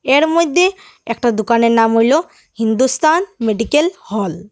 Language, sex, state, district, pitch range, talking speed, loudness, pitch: Bengali, female, Assam, Hailakandi, 225-320 Hz, 135 wpm, -15 LUFS, 245 Hz